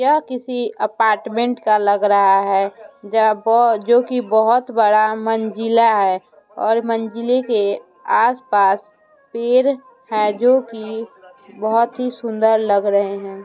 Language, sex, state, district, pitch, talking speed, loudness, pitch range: Hindi, female, Bihar, Muzaffarpur, 225 Hz, 135 wpm, -17 LUFS, 210-245 Hz